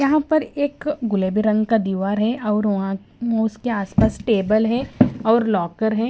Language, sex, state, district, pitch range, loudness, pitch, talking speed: Hindi, female, Bihar, West Champaran, 210-240 Hz, -20 LUFS, 220 Hz, 165 wpm